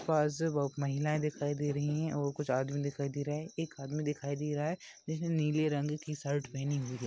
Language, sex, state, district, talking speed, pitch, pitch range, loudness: Hindi, male, Maharashtra, Chandrapur, 220 wpm, 145 Hz, 140-150 Hz, -35 LUFS